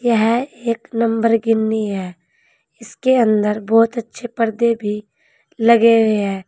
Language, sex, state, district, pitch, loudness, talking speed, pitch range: Hindi, female, Uttar Pradesh, Saharanpur, 225 Hz, -17 LUFS, 130 wpm, 215-235 Hz